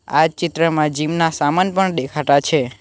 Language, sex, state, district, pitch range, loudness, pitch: Gujarati, male, Gujarat, Navsari, 145-165 Hz, -17 LUFS, 155 Hz